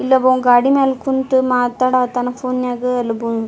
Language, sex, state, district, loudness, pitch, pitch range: Kannada, female, Karnataka, Dharwad, -16 LUFS, 255 Hz, 245-260 Hz